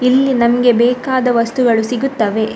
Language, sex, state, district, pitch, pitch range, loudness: Kannada, female, Karnataka, Dakshina Kannada, 245 Hz, 230-255 Hz, -14 LUFS